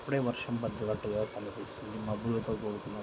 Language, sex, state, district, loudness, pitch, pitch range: Telugu, male, Andhra Pradesh, Srikakulam, -35 LUFS, 110 Hz, 105-115 Hz